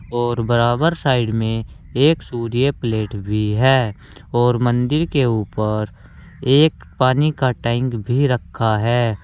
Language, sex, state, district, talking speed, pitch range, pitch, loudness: Hindi, male, Uttar Pradesh, Saharanpur, 130 wpm, 110-130 Hz, 120 Hz, -18 LUFS